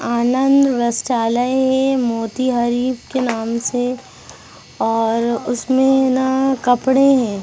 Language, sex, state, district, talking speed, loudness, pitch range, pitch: Hindi, female, Bihar, East Champaran, 95 wpm, -17 LUFS, 235-265 Hz, 250 Hz